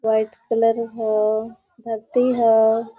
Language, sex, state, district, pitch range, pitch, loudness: Hindi, female, Jharkhand, Sahebganj, 220-230 Hz, 225 Hz, -20 LUFS